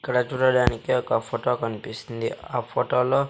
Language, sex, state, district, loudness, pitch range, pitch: Telugu, male, Andhra Pradesh, Sri Satya Sai, -25 LUFS, 115-130 Hz, 125 Hz